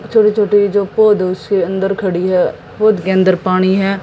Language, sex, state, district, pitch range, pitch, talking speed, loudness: Hindi, female, Haryana, Jhajjar, 185-205 Hz, 195 Hz, 195 wpm, -14 LUFS